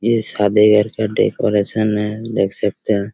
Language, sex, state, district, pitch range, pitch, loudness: Hindi, male, Chhattisgarh, Raigarh, 105-110 Hz, 105 Hz, -17 LUFS